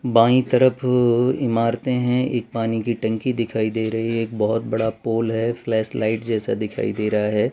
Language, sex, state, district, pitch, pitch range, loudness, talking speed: Hindi, male, Gujarat, Valsad, 115 Hz, 110-125 Hz, -21 LUFS, 185 wpm